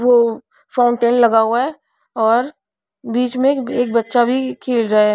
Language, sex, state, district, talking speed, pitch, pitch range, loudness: Hindi, female, Punjab, Pathankot, 165 wpm, 240 Hz, 230-255 Hz, -16 LUFS